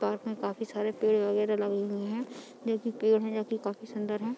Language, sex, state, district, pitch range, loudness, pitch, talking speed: Hindi, female, Bihar, Gopalganj, 210-225 Hz, -31 LUFS, 215 Hz, 220 wpm